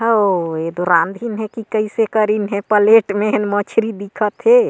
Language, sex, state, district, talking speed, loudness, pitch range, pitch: Chhattisgarhi, female, Chhattisgarh, Sarguja, 190 wpm, -17 LUFS, 200-225 Hz, 210 Hz